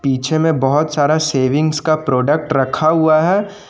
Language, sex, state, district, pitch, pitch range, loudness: Hindi, male, Jharkhand, Ranchi, 155 Hz, 140-160 Hz, -15 LUFS